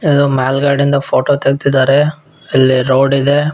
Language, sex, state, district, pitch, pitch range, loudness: Kannada, male, Karnataka, Bellary, 140 Hz, 135-145 Hz, -12 LUFS